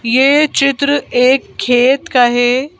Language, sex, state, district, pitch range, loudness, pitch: Hindi, female, Madhya Pradesh, Bhopal, 245-280 Hz, -12 LUFS, 265 Hz